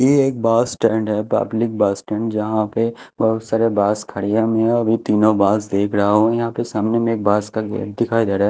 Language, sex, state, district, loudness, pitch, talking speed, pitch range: Hindi, male, Chhattisgarh, Raipur, -18 LUFS, 110 Hz, 240 wpm, 105-115 Hz